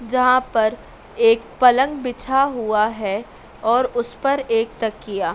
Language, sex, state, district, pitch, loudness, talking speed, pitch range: Hindi, female, Madhya Pradesh, Dhar, 240 Hz, -19 LUFS, 135 wpm, 225-260 Hz